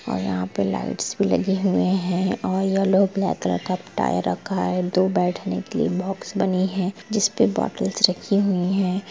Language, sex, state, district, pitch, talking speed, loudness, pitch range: Hindi, female, Bihar, Sitamarhi, 190 Hz, 185 wpm, -22 LUFS, 180-195 Hz